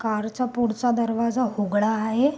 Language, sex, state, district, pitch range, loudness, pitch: Marathi, female, Maharashtra, Sindhudurg, 220-245 Hz, -24 LUFS, 230 Hz